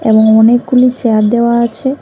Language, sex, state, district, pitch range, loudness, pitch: Bengali, female, Tripura, West Tripura, 220-250 Hz, -10 LUFS, 235 Hz